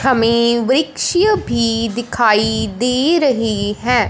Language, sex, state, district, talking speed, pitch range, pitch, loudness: Hindi, male, Punjab, Fazilka, 100 wpm, 225-265 Hz, 235 Hz, -15 LUFS